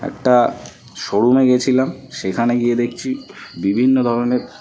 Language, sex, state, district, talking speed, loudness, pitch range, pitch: Bengali, male, West Bengal, North 24 Parganas, 115 wpm, -17 LUFS, 120-130 Hz, 120 Hz